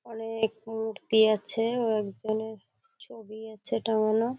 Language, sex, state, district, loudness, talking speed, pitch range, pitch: Bengali, female, West Bengal, Kolkata, -28 LUFS, 110 wpm, 215-225 Hz, 220 Hz